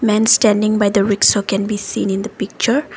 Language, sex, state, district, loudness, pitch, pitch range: English, female, Assam, Kamrup Metropolitan, -15 LUFS, 210 Hz, 200-220 Hz